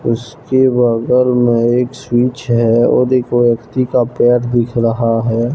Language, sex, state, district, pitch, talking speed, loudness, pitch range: Hindi, male, Jharkhand, Deoghar, 120 Hz, 150 wpm, -14 LUFS, 115-125 Hz